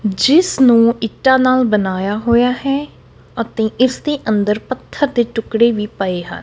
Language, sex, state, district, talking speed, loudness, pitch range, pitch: Punjabi, female, Punjab, Kapurthala, 160 wpm, -15 LUFS, 210-255 Hz, 235 Hz